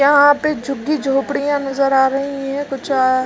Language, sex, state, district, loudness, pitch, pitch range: Hindi, female, Chhattisgarh, Raigarh, -17 LUFS, 275 Hz, 270-285 Hz